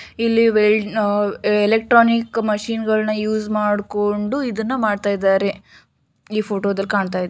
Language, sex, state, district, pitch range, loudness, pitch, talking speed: Kannada, female, Karnataka, Shimoga, 205-225 Hz, -18 LUFS, 215 Hz, 105 wpm